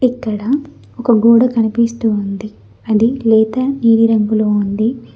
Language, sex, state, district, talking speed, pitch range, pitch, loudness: Telugu, female, Telangana, Mahabubabad, 115 wpm, 215-240 Hz, 225 Hz, -14 LUFS